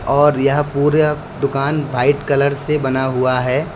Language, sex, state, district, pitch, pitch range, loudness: Hindi, male, Uttar Pradesh, Lalitpur, 140 Hz, 135-150 Hz, -17 LUFS